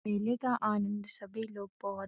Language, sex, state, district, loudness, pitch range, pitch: Hindi, female, Uttarakhand, Uttarkashi, -35 LUFS, 200-225 Hz, 205 Hz